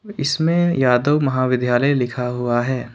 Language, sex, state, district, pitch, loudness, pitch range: Hindi, male, Jharkhand, Ranchi, 130 Hz, -18 LUFS, 125-145 Hz